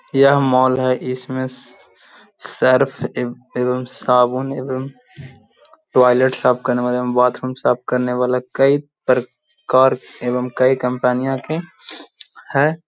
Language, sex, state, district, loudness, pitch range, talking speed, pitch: Hindi, male, Bihar, Gaya, -18 LUFS, 125-135 Hz, 105 wpm, 130 Hz